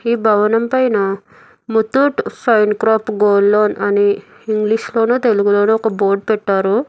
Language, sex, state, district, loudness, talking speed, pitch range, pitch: Telugu, female, Telangana, Hyderabad, -15 LUFS, 130 wpm, 205-225 Hz, 215 Hz